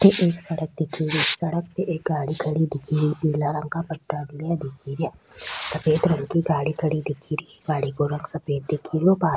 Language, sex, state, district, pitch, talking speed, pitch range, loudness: Rajasthani, female, Rajasthan, Churu, 155 Hz, 190 wpm, 150-165 Hz, -23 LUFS